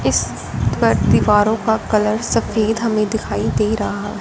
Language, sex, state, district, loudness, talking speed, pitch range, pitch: Hindi, female, Punjab, Fazilka, -17 LUFS, 140 wpm, 215-220 Hz, 220 Hz